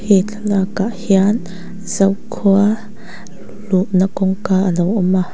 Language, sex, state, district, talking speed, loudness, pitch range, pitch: Mizo, female, Mizoram, Aizawl, 110 wpm, -16 LUFS, 190-210 Hz, 195 Hz